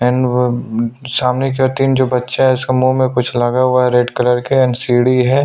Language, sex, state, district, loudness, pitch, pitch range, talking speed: Hindi, male, Chhattisgarh, Sukma, -14 LUFS, 125 Hz, 125-130 Hz, 240 wpm